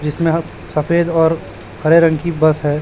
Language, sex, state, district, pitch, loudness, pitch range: Hindi, male, Chhattisgarh, Raipur, 160 Hz, -15 LUFS, 150-165 Hz